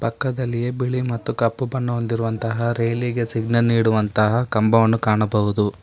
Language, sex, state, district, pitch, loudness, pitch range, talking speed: Kannada, male, Karnataka, Bangalore, 115 Hz, -20 LUFS, 110-120 Hz, 125 wpm